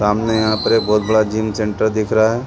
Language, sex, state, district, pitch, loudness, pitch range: Hindi, male, Chhattisgarh, Sarguja, 110 Hz, -16 LUFS, 105-110 Hz